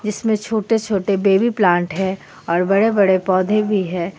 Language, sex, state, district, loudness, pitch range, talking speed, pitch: Hindi, female, Jharkhand, Ranchi, -17 LUFS, 185-215 Hz, 170 wpm, 195 Hz